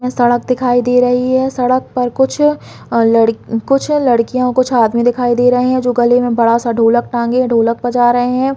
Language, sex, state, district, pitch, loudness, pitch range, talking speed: Hindi, female, Chhattisgarh, Bilaspur, 245 Hz, -13 LUFS, 240-255 Hz, 215 wpm